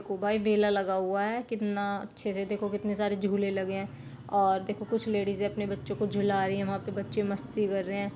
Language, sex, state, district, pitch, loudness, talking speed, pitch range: Hindi, female, Uttar Pradesh, Jyotiba Phule Nagar, 200 Hz, -30 LUFS, 235 wpm, 195-210 Hz